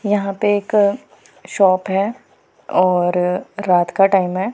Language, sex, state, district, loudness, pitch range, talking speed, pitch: Hindi, female, Punjab, Pathankot, -17 LUFS, 180-205 Hz, 130 wpm, 195 Hz